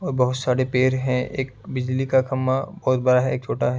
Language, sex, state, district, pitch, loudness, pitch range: Hindi, male, Bihar, Kishanganj, 130 Hz, -22 LUFS, 125-130 Hz